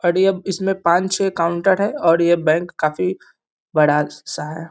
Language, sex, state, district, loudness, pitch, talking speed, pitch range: Hindi, male, Bihar, East Champaran, -18 LUFS, 175 Hz, 180 wpm, 160-190 Hz